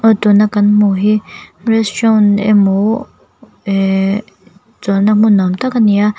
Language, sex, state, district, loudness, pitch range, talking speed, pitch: Mizo, female, Mizoram, Aizawl, -12 LUFS, 195-220 Hz, 135 wpm, 205 Hz